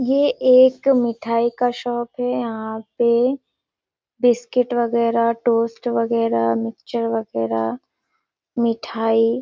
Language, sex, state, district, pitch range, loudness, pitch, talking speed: Hindi, female, Chhattisgarh, Sarguja, 225-245 Hz, -20 LUFS, 235 Hz, 95 wpm